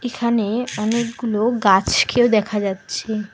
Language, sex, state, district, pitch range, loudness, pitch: Bengali, female, West Bengal, Alipurduar, 210-235 Hz, -19 LUFS, 220 Hz